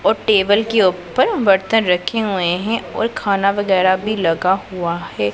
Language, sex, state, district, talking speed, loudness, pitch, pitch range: Hindi, female, Punjab, Pathankot, 170 wpm, -17 LUFS, 195 Hz, 180-215 Hz